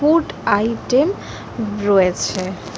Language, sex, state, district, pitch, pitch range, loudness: Bengali, female, West Bengal, Kolkata, 210 Hz, 195-265 Hz, -18 LUFS